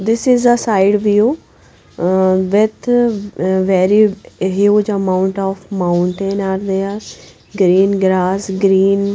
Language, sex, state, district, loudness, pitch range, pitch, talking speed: English, female, Punjab, Pathankot, -14 LUFS, 190-210 Hz, 195 Hz, 105 wpm